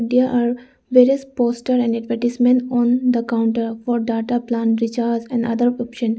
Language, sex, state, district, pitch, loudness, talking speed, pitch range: English, female, Arunachal Pradesh, Lower Dibang Valley, 240 Hz, -19 LUFS, 165 wpm, 230-245 Hz